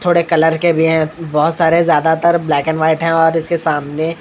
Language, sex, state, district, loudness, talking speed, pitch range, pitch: Hindi, male, Bihar, Katihar, -14 LUFS, 215 wpm, 160-165 Hz, 165 Hz